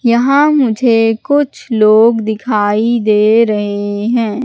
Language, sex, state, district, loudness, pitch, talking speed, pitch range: Hindi, female, Madhya Pradesh, Katni, -12 LUFS, 225 Hz, 110 wpm, 215-240 Hz